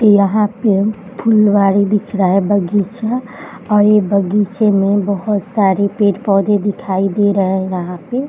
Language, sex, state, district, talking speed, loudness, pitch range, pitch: Hindi, female, Bihar, Bhagalpur, 145 wpm, -14 LUFS, 195-210 Hz, 205 Hz